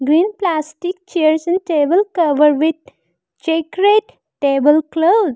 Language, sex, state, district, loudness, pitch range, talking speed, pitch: English, female, Arunachal Pradesh, Lower Dibang Valley, -16 LUFS, 305-365 Hz, 110 wpm, 325 Hz